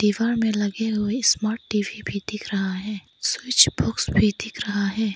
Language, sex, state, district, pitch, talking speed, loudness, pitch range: Hindi, female, Arunachal Pradesh, Papum Pare, 210 Hz, 185 wpm, -23 LUFS, 205-220 Hz